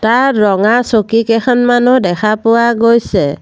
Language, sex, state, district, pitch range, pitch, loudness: Assamese, female, Assam, Sonitpur, 215-245 Hz, 230 Hz, -11 LUFS